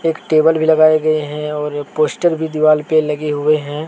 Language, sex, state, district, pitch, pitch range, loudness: Hindi, male, Jharkhand, Deoghar, 155 Hz, 150-160 Hz, -15 LUFS